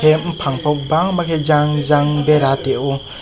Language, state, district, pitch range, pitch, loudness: Kokborok, Tripura, West Tripura, 140-155 Hz, 150 Hz, -16 LUFS